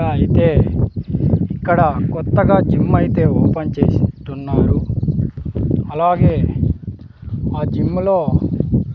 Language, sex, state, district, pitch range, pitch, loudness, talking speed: Telugu, male, Andhra Pradesh, Sri Satya Sai, 105-140 Hz, 135 Hz, -17 LUFS, 80 wpm